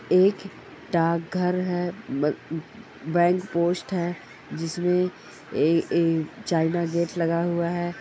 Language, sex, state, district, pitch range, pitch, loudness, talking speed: Hindi, male, Bihar, Darbhanga, 165-180 Hz, 175 Hz, -25 LUFS, 120 wpm